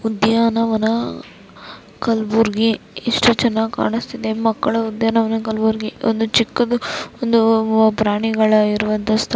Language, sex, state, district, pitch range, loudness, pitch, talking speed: Kannada, female, Karnataka, Gulbarga, 220-230 Hz, -18 LUFS, 225 Hz, 95 wpm